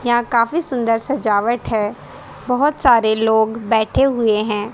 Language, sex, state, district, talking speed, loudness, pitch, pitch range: Hindi, female, Haryana, Charkhi Dadri, 140 wpm, -17 LUFS, 230 Hz, 220-250 Hz